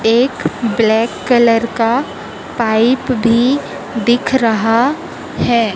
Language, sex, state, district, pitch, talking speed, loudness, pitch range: Hindi, female, Chhattisgarh, Raipur, 235 Hz, 95 wpm, -14 LUFS, 225-250 Hz